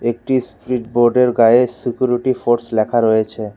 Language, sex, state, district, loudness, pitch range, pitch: Bengali, male, West Bengal, Cooch Behar, -16 LUFS, 115-125 Hz, 120 Hz